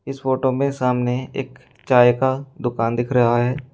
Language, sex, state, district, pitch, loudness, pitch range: Hindi, male, Uttar Pradesh, Shamli, 125 Hz, -20 LUFS, 125-130 Hz